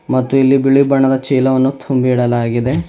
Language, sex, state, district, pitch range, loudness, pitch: Kannada, male, Karnataka, Bidar, 130-135 Hz, -13 LUFS, 130 Hz